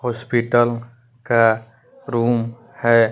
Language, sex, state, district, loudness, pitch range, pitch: Hindi, male, Bihar, West Champaran, -19 LUFS, 115-120 Hz, 120 Hz